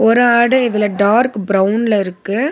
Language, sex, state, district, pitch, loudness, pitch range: Tamil, female, Tamil Nadu, Nilgiris, 215 Hz, -14 LUFS, 200-240 Hz